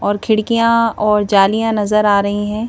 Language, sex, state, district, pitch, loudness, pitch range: Hindi, female, Madhya Pradesh, Bhopal, 210 Hz, -14 LUFS, 205-225 Hz